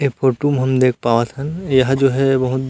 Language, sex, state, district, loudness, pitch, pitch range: Chhattisgarhi, male, Chhattisgarh, Rajnandgaon, -17 LUFS, 130 Hz, 130-135 Hz